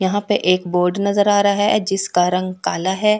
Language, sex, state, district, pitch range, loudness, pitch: Hindi, female, Delhi, New Delhi, 185-205 Hz, -17 LUFS, 195 Hz